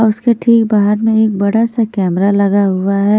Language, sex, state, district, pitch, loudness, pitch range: Hindi, female, Punjab, Kapurthala, 210 Hz, -13 LUFS, 200-225 Hz